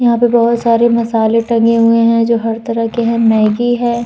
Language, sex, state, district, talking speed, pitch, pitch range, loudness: Hindi, female, Uttar Pradesh, Muzaffarnagar, 220 wpm, 230 Hz, 230-235 Hz, -12 LUFS